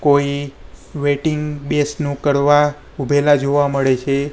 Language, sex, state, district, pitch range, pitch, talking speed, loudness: Gujarati, male, Gujarat, Gandhinagar, 140-145 Hz, 145 Hz, 110 wpm, -17 LUFS